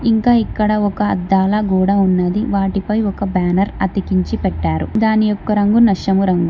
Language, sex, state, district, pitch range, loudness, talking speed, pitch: Telugu, female, Telangana, Hyderabad, 190-210 Hz, -16 LUFS, 140 wpm, 200 Hz